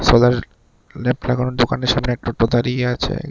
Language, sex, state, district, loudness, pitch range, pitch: Bengali, male, Tripura, West Tripura, -19 LUFS, 120-125 Hz, 125 Hz